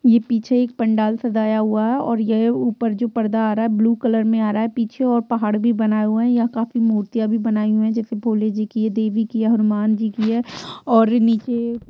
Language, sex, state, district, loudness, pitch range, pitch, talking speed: Hindi, female, Bihar, East Champaran, -19 LUFS, 220-235 Hz, 225 Hz, 235 wpm